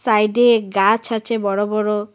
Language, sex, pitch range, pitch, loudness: Bengali, female, 210-230 Hz, 215 Hz, -17 LUFS